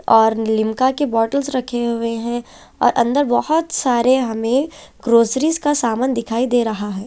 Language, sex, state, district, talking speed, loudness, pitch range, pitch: Hindi, female, Chandigarh, Chandigarh, 155 wpm, -18 LUFS, 230-265 Hz, 240 Hz